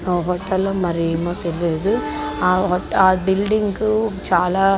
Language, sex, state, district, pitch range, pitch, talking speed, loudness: Telugu, female, Andhra Pradesh, Guntur, 175-195 Hz, 185 Hz, 90 wpm, -19 LUFS